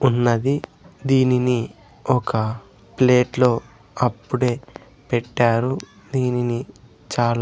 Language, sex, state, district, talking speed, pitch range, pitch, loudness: Telugu, male, Andhra Pradesh, Sri Satya Sai, 65 wpm, 115-130 Hz, 120 Hz, -21 LUFS